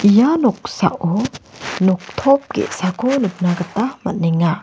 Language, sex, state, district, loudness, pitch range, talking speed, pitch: Garo, female, Meghalaya, West Garo Hills, -18 LUFS, 180-250 Hz, 90 wpm, 205 Hz